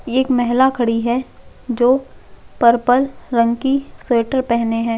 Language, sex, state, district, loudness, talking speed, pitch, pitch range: Hindi, female, Chhattisgarh, Jashpur, -17 LUFS, 130 wpm, 245 Hz, 235-260 Hz